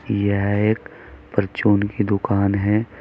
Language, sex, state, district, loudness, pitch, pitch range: Hindi, male, Uttar Pradesh, Saharanpur, -20 LUFS, 100 Hz, 100-105 Hz